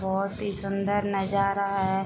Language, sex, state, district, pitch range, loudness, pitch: Hindi, female, Jharkhand, Sahebganj, 195-200 Hz, -27 LUFS, 195 Hz